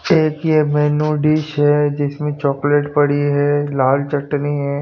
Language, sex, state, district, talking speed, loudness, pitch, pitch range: Hindi, male, Punjab, Pathankot, 150 wpm, -17 LUFS, 145 Hz, 145-150 Hz